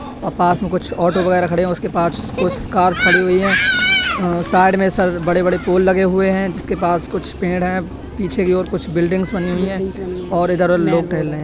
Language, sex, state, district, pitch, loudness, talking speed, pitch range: Hindi, male, Uttar Pradesh, Etah, 180 Hz, -16 LUFS, 220 wpm, 175-190 Hz